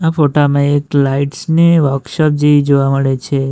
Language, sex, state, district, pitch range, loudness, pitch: Gujarati, male, Gujarat, Valsad, 135-150 Hz, -13 LUFS, 145 Hz